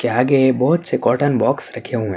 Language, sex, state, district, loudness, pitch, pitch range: Urdu, male, Uttar Pradesh, Budaun, -17 LUFS, 125 Hz, 120-135 Hz